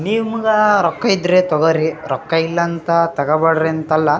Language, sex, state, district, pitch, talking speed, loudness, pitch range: Kannada, male, Karnataka, Raichur, 165 Hz, 145 wpm, -16 LUFS, 160-195 Hz